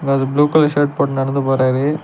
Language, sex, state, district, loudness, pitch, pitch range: Tamil, male, Tamil Nadu, Nilgiris, -16 LUFS, 140 Hz, 135-145 Hz